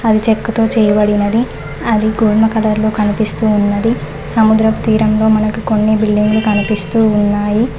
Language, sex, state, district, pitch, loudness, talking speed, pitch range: Telugu, female, Telangana, Mahabubabad, 215 Hz, -13 LUFS, 125 wpm, 210-220 Hz